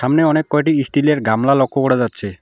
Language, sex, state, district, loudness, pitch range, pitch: Bengali, male, West Bengal, Alipurduar, -16 LUFS, 125-150 Hz, 140 Hz